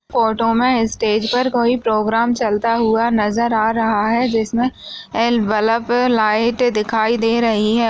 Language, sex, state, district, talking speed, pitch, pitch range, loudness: Hindi, female, Goa, North and South Goa, 160 wpm, 230 Hz, 220-235 Hz, -17 LUFS